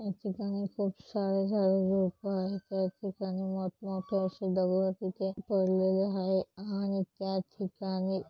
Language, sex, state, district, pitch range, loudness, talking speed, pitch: Marathi, female, Maharashtra, Chandrapur, 190-200 Hz, -32 LUFS, 130 wpm, 190 Hz